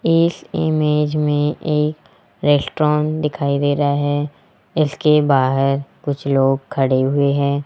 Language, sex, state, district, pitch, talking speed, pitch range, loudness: Hindi, male, Rajasthan, Jaipur, 145 Hz, 125 wpm, 140-150 Hz, -18 LUFS